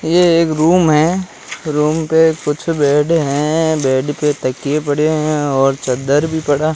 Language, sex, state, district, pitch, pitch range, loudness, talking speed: Hindi, male, Rajasthan, Jaisalmer, 150 Hz, 145-160 Hz, -15 LUFS, 160 wpm